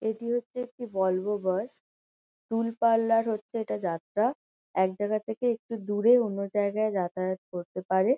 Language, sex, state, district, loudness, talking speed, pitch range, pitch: Bengali, female, West Bengal, Kolkata, -28 LUFS, 145 wpm, 190-230 Hz, 215 Hz